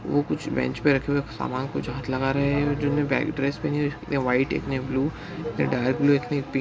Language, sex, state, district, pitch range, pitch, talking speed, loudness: Hindi, male, Bihar, Bhagalpur, 130-145 Hz, 140 Hz, 280 wpm, -25 LUFS